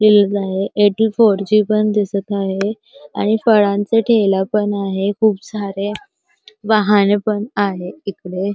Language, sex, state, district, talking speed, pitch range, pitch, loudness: Marathi, female, Maharashtra, Sindhudurg, 110 wpm, 200-215 Hz, 205 Hz, -16 LUFS